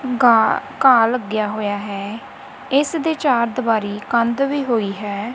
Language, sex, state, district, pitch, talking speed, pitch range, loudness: Punjabi, female, Punjab, Kapurthala, 230 Hz, 135 wpm, 210-260 Hz, -18 LUFS